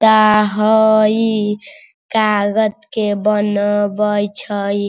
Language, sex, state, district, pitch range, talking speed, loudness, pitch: Hindi, female, Bihar, Sitamarhi, 205-220 Hz, 75 wpm, -15 LUFS, 210 Hz